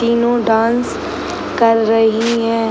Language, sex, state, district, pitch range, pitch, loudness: Hindi, female, Uttar Pradesh, Gorakhpur, 225-235 Hz, 230 Hz, -15 LUFS